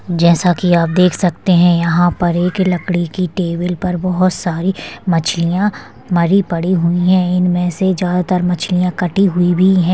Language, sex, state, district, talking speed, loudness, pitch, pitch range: Hindi, female, Maharashtra, Nagpur, 175 wpm, -15 LUFS, 180 Hz, 175-185 Hz